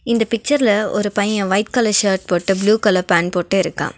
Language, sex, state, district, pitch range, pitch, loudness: Tamil, female, Tamil Nadu, Nilgiris, 190-215 Hz, 205 Hz, -17 LUFS